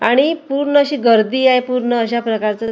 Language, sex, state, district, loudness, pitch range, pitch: Marathi, female, Maharashtra, Gondia, -15 LUFS, 230-275 Hz, 250 Hz